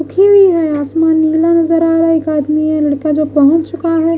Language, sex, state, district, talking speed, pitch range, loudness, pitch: Hindi, female, Maharashtra, Gondia, 260 wpm, 305-330 Hz, -12 LUFS, 320 Hz